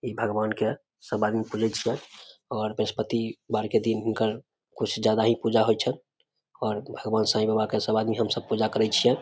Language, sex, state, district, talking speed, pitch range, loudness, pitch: Maithili, male, Bihar, Samastipur, 200 wpm, 110-115 Hz, -26 LUFS, 110 Hz